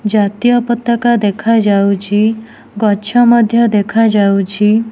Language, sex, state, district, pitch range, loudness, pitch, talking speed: Odia, female, Odisha, Nuapada, 205-235 Hz, -12 LUFS, 220 Hz, 75 wpm